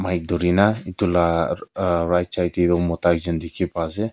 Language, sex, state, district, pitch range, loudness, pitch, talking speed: Nagamese, male, Nagaland, Kohima, 85-90 Hz, -21 LUFS, 90 Hz, 220 wpm